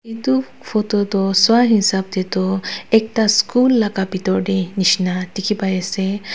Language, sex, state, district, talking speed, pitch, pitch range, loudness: Nagamese, female, Nagaland, Dimapur, 115 wpm, 200 Hz, 190-220 Hz, -17 LUFS